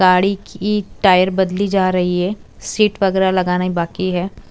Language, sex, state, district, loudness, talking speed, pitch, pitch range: Hindi, female, Chhattisgarh, Raipur, -17 LUFS, 175 wpm, 185 Hz, 180-195 Hz